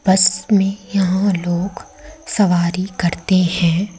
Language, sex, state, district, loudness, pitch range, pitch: Hindi, female, Madhya Pradesh, Umaria, -17 LUFS, 175-200 Hz, 185 Hz